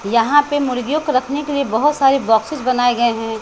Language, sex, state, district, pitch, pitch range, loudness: Hindi, female, Bihar, West Champaran, 255 Hz, 230-290 Hz, -16 LUFS